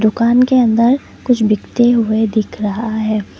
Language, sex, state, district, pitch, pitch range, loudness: Hindi, female, Assam, Kamrup Metropolitan, 225 Hz, 215-240 Hz, -14 LUFS